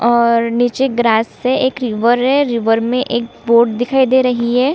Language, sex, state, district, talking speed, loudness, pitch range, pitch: Hindi, female, Chhattisgarh, Kabirdham, 190 wpm, -14 LUFS, 235-255 Hz, 240 Hz